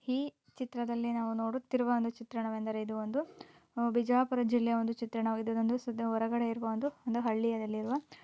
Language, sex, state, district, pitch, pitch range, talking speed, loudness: Kannada, female, Karnataka, Bijapur, 235 Hz, 225-250 Hz, 140 wpm, -34 LUFS